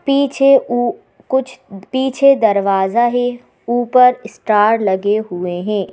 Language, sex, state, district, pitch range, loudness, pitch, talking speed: Hindi, female, Madhya Pradesh, Bhopal, 205-260 Hz, -15 LUFS, 240 Hz, 110 wpm